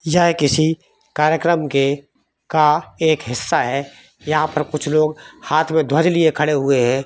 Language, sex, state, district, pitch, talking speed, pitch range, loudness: Hindi, male, Jharkhand, Jamtara, 155 Hz, 155 wpm, 140-160 Hz, -18 LUFS